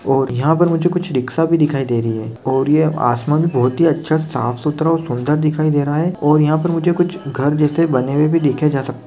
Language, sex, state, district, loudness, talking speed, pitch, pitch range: Hindi, male, Rajasthan, Nagaur, -16 LUFS, 245 wpm, 150 Hz, 130-160 Hz